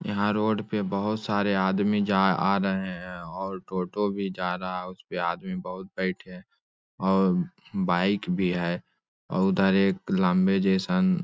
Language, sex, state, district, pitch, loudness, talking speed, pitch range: Hindi, male, Bihar, Araria, 95 Hz, -26 LUFS, 165 wpm, 95-105 Hz